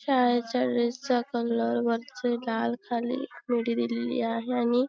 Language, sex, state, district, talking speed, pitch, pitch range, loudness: Marathi, female, Maharashtra, Chandrapur, 135 wpm, 240 Hz, 235-245 Hz, -28 LUFS